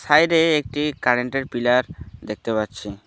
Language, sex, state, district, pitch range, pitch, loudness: Bengali, male, West Bengal, Alipurduar, 105-145 Hz, 125 Hz, -20 LUFS